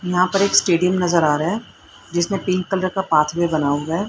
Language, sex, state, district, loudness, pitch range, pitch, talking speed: Hindi, female, Haryana, Rohtak, -19 LUFS, 165-190 Hz, 180 Hz, 220 wpm